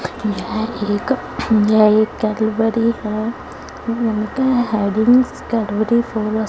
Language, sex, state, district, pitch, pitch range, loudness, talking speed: Hindi, female, Punjab, Fazilka, 220 Hz, 215-230 Hz, -18 LUFS, 65 wpm